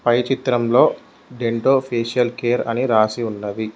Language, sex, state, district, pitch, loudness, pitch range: Telugu, male, Telangana, Mahabubabad, 120 Hz, -19 LUFS, 115-125 Hz